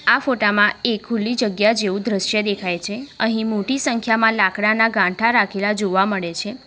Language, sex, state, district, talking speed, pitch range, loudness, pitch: Gujarati, female, Gujarat, Valsad, 170 wpm, 200-230 Hz, -19 LUFS, 215 Hz